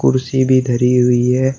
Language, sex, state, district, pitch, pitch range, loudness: Hindi, male, Uttar Pradesh, Shamli, 130 Hz, 125-130 Hz, -14 LUFS